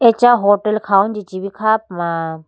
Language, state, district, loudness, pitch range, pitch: Idu Mishmi, Arunachal Pradesh, Lower Dibang Valley, -16 LUFS, 185-215 Hz, 205 Hz